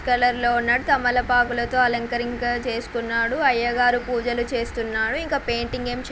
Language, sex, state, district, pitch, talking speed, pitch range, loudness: Telugu, female, Telangana, Nalgonda, 240 Hz, 135 wpm, 240-245 Hz, -22 LUFS